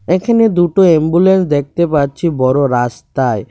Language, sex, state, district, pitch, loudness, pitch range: Bengali, male, Tripura, West Tripura, 160 Hz, -13 LUFS, 135-180 Hz